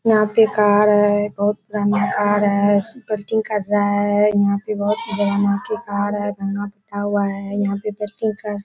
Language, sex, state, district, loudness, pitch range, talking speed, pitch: Hindi, female, Bihar, Kishanganj, -19 LUFS, 205-210 Hz, 120 wpm, 205 Hz